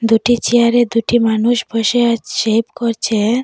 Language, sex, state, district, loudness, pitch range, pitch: Bengali, female, Assam, Hailakandi, -15 LUFS, 225-240 Hz, 230 Hz